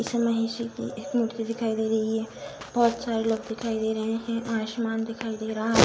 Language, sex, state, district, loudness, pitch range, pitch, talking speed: Hindi, female, Bihar, Saharsa, -28 LUFS, 220-230 Hz, 225 Hz, 215 wpm